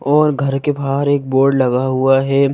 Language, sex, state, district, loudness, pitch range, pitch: Hindi, female, Madhya Pradesh, Bhopal, -15 LUFS, 135-140 Hz, 135 Hz